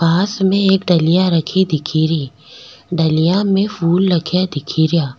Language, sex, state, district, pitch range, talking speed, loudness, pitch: Rajasthani, female, Rajasthan, Nagaur, 160-190 Hz, 125 wpm, -15 LUFS, 170 Hz